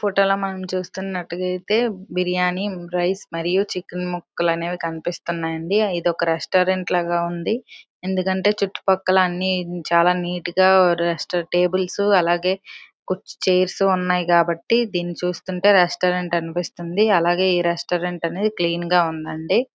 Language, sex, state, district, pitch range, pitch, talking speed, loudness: Telugu, female, Andhra Pradesh, Srikakulam, 175-190 Hz, 180 Hz, 125 wpm, -21 LUFS